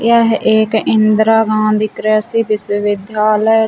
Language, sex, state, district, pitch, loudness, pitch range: Hindi, female, Chhattisgarh, Bilaspur, 215 Hz, -13 LUFS, 215-225 Hz